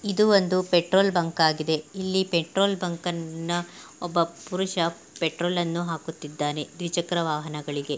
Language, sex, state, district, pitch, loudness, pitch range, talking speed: Kannada, female, Karnataka, Belgaum, 170 Hz, -25 LUFS, 160-185 Hz, 120 wpm